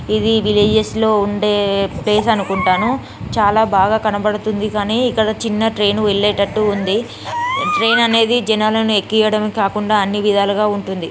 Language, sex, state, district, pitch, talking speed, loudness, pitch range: Telugu, female, Telangana, Nalgonda, 210 Hz, 125 wpm, -16 LUFS, 205-220 Hz